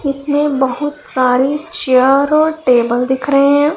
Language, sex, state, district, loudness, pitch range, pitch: Hindi, female, Punjab, Pathankot, -13 LUFS, 260-295 Hz, 280 Hz